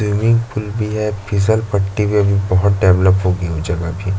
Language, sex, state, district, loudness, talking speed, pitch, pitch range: Hindi, male, Chhattisgarh, Jashpur, -16 LUFS, 245 wpm, 100 Hz, 95-105 Hz